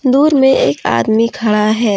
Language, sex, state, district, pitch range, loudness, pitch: Hindi, female, Jharkhand, Deoghar, 215-265 Hz, -12 LUFS, 230 Hz